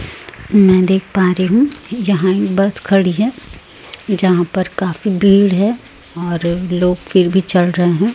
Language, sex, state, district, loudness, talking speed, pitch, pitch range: Hindi, female, Chhattisgarh, Raipur, -14 LUFS, 160 wpm, 190 Hz, 180-200 Hz